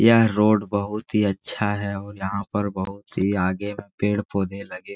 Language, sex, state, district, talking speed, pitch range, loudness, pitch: Hindi, male, Bihar, Jahanabad, 180 wpm, 100-105 Hz, -24 LUFS, 100 Hz